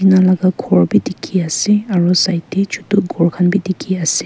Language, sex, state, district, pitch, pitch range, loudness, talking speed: Nagamese, female, Nagaland, Kohima, 185 Hz, 170-190 Hz, -15 LUFS, 210 wpm